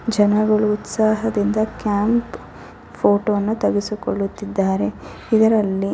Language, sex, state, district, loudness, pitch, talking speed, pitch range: Kannada, female, Karnataka, Bellary, -19 LUFS, 210 Hz, 80 wpm, 200-215 Hz